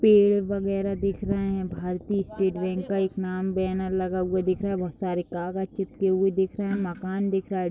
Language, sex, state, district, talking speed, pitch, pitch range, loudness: Hindi, female, Uttar Pradesh, Budaun, 255 wpm, 190 Hz, 185-195 Hz, -26 LUFS